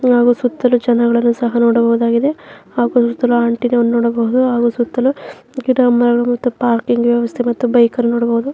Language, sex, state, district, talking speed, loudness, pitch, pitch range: Kannada, female, Karnataka, Dharwad, 145 wpm, -14 LUFS, 240 Hz, 235-245 Hz